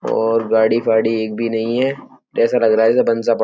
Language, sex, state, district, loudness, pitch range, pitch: Hindi, male, Uttar Pradesh, Etah, -16 LUFS, 110-115 Hz, 115 Hz